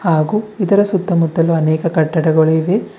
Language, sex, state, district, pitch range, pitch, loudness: Kannada, male, Karnataka, Bidar, 160-200 Hz, 165 Hz, -15 LUFS